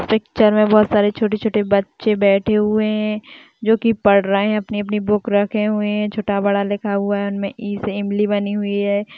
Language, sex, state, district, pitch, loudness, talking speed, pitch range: Hindi, female, Rajasthan, Nagaur, 210 Hz, -18 LUFS, 195 wpm, 200-215 Hz